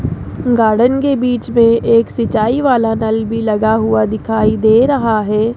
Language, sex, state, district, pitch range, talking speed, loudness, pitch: Hindi, male, Rajasthan, Jaipur, 220-240 Hz, 160 wpm, -13 LUFS, 225 Hz